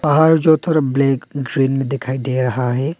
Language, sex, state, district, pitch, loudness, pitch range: Hindi, male, Arunachal Pradesh, Longding, 135 Hz, -17 LUFS, 130-155 Hz